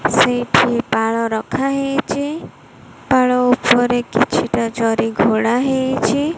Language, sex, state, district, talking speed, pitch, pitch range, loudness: Odia, female, Odisha, Malkangiri, 85 wpm, 245 Hz, 230-270 Hz, -17 LUFS